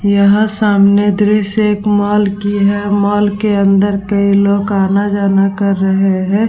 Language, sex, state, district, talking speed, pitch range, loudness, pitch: Hindi, female, Bihar, Vaishali, 150 wpm, 200-205 Hz, -12 LUFS, 200 Hz